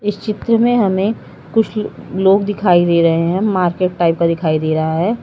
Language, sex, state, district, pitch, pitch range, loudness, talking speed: Hindi, female, Uttar Pradesh, Lalitpur, 185 Hz, 170-210 Hz, -15 LUFS, 195 wpm